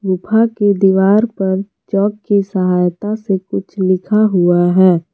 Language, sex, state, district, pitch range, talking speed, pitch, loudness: Hindi, female, Jharkhand, Palamu, 185-205 Hz, 140 wpm, 195 Hz, -14 LUFS